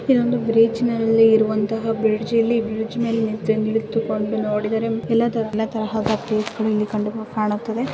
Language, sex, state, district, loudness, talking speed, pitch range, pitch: Kannada, female, Karnataka, Dakshina Kannada, -20 LUFS, 150 wpm, 215-230 Hz, 220 Hz